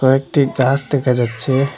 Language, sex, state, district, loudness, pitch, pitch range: Bengali, male, Assam, Hailakandi, -16 LUFS, 135 Hz, 130-140 Hz